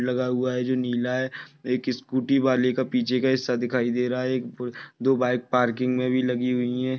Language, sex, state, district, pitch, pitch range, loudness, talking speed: Hindi, male, Maharashtra, Chandrapur, 125 Hz, 125-130 Hz, -25 LUFS, 205 wpm